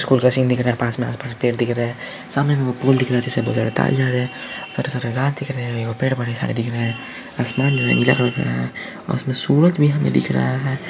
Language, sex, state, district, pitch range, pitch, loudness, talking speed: Hindi, male, Bihar, Araria, 120-135 Hz, 125 Hz, -19 LUFS, 275 wpm